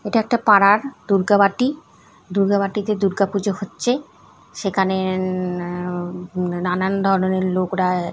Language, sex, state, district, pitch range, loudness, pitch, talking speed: Bengali, female, West Bengal, North 24 Parganas, 185-205 Hz, -20 LUFS, 195 Hz, 110 wpm